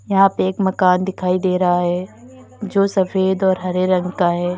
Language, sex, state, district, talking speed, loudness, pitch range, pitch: Hindi, female, Uttar Pradesh, Lalitpur, 195 wpm, -18 LUFS, 180-190 Hz, 185 Hz